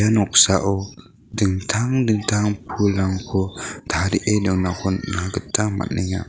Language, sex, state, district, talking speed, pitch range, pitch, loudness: Garo, male, Meghalaya, West Garo Hills, 85 wpm, 95-110 Hz, 100 Hz, -20 LUFS